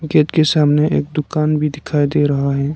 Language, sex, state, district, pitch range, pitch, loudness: Hindi, male, Arunachal Pradesh, Lower Dibang Valley, 145-155 Hz, 150 Hz, -16 LUFS